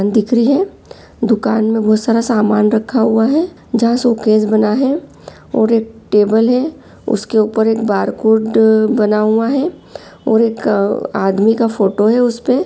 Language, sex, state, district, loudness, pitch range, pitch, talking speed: Hindi, female, Chhattisgarh, Raigarh, -14 LUFS, 215-235 Hz, 220 Hz, 160 wpm